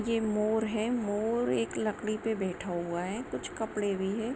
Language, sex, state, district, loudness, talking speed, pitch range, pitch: Hindi, female, Jharkhand, Sahebganj, -32 LUFS, 190 wpm, 190-220 Hz, 215 Hz